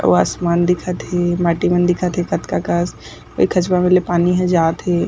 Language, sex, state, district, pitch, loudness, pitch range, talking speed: Chhattisgarhi, female, Chhattisgarh, Jashpur, 175 Hz, -17 LUFS, 165-180 Hz, 225 wpm